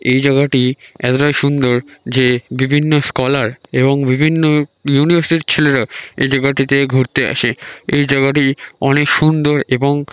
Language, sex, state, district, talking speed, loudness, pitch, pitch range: Bengali, male, West Bengal, North 24 Parganas, 125 wpm, -14 LUFS, 140 Hz, 130-145 Hz